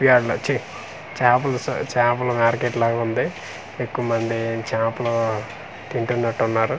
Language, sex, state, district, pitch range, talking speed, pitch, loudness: Telugu, male, Andhra Pradesh, Manyam, 115-125 Hz, 95 wpm, 115 Hz, -22 LUFS